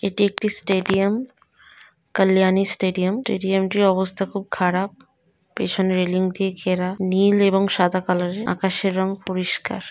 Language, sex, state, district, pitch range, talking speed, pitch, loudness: Bengali, female, West Bengal, North 24 Parganas, 185-195 Hz, 140 wpm, 190 Hz, -21 LUFS